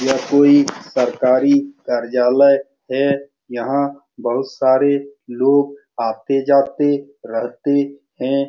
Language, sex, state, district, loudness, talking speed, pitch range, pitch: Hindi, male, Bihar, Saran, -17 LUFS, 85 wpm, 130-140 Hz, 140 Hz